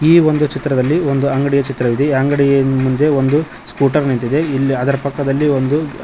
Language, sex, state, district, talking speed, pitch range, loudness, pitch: Kannada, male, Karnataka, Koppal, 160 wpm, 135-150 Hz, -15 LUFS, 140 Hz